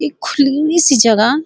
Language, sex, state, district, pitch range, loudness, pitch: Garhwali, female, Uttarakhand, Uttarkashi, 225-295 Hz, -12 LUFS, 275 Hz